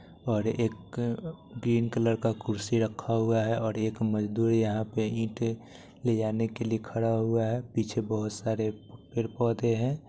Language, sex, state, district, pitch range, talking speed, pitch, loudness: Maithili, male, Bihar, Supaul, 110-115 Hz, 165 wpm, 115 Hz, -29 LUFS